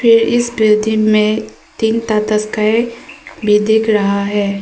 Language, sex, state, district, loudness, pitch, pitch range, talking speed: Hindi, female, Arunachal Pradesh, Papum Pare, -14 LUFS, 215 Hz, 210-230 Hz, 105 wpm